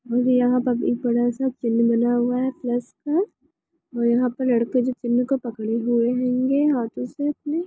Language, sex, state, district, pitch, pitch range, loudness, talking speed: Hindi, female, Chhattisgarh, Raigarh, 250 Hz, 240-265 Hz, -22 LUFS, 165 wpm